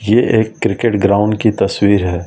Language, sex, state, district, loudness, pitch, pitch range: Hindi, male, Delhi, New Delhi, -14 LUFS, 105 Hz, 100-110 Hz